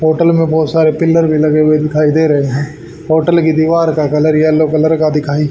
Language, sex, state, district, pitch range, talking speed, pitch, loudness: Hindi, male, Haryana, Charkhi Dadri, 155-160 Hz, 240 wpm, 155 Hz, -12 LUFS